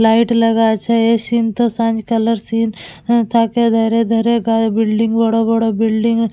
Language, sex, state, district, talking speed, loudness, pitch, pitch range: Bengali, female, West Bengal, Purulia, 180 wpm, -15 LUFS, 225 Hz, 225-230 Hz